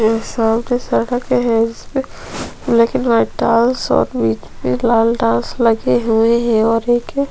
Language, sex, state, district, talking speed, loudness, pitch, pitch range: Hindi, female, Chhattisgarh, Sukma, 155 wpm, -16 LUFS, 230 Hz, 225-245 Hz